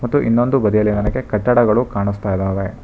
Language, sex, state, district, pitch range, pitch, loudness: Kannada, male, Karnataka, Bangalore, 100-120 Hz, 105 Hz, -17 LUFS